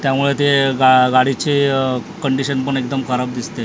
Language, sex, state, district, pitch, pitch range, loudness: Marathi, male, Maharashtra, Mumbai Suburban, 135 Hz, 130-140 Hz, -16 LUFS